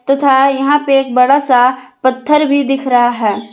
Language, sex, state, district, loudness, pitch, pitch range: Hindi, female, Jharkhand, Ranchi, -12 LUFS, 270 Hz, 250-280 Hz